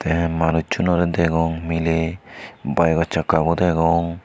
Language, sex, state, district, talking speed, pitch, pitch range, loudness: Chakma, male, Tripura, Unakoti, 115 wpm, 80 Hz, 80-85 Hz, -20 LUFS